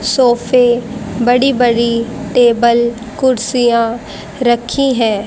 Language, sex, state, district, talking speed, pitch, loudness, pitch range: Hindi, female, Haryana, Rohtak, 80 wpm, 240 Hz, -13 LUFS, 230-245 Hz